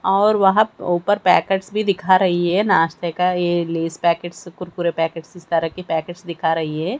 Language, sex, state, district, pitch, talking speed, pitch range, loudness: Hindi, female, Haryana, Charkhi Dadri, 175 Hz, 195 wpm, 165-190 Hz, -19 LUFS